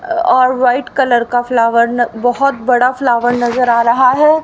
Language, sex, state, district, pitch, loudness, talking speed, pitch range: Hindi, female, Haryana, Rohtak, 245 Hz, -12 LUFS, 175 wpm, 240-265 Hz